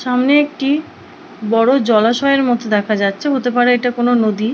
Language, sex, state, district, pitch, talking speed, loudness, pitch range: Bengali, female, West Bengal, Purulia, 245 Hz, 160 wpm, -15 LUFS, 225-270 Hz